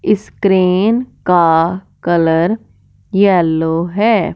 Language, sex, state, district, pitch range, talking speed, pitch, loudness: Hindi, male, Punjab, Fazilka, 165-200 Hz, 85 wpm, 180 Hz, -14 LUFS